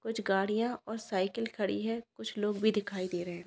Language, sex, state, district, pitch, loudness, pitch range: Hindi, female, Bihar, Jahanabad, 210 Hz, -33 LUFS, 195-225 Hz